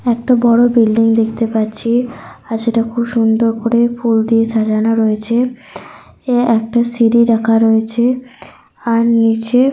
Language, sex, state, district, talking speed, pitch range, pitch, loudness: Bengali, female, Jharkhand, Sahebganj, 130 wpm, 225-235 Hz, 230 Hz, -14 LUFS